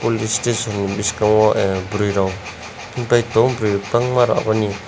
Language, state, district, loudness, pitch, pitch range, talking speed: Kokborok, Tripura, West Tripura, -18 LUFS, 105 Hz, 100-120 Hz, 170 wpm